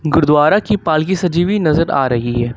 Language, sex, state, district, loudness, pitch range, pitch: Hindi, male, Uttar Pradesh, Lucknow, -14 LUFS, 140-180 Hz, 160 Hz